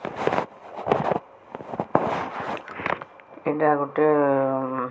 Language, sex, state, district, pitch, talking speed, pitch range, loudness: Odia, male, Odisha, Sambalpur, 145 Hz, 75 wpm, 135-150 Hz, -25 LUFS